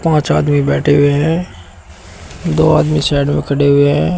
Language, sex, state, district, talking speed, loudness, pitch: Hindi, male, Uttar Pradesh, Shamli, 170 wpm, -13 LUFS, 140 Hz